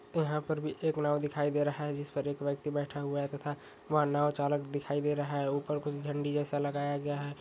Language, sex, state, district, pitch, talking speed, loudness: Hindi, male, Jharkhand, Jamtara, 145 Hz, 250 wpm, -33 LUFS